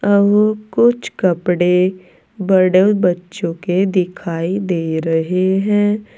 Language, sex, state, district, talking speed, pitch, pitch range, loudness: Hindi, female, Uttar Pradesh, Saharanpur, 95 wpm, 185 Hz, 180-205 Hz, -16 LUFS